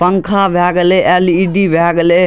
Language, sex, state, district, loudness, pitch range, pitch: Maithili, male, Bihar, Darbhanga, -11 LUFS, 175-185 Hz, 180 Hz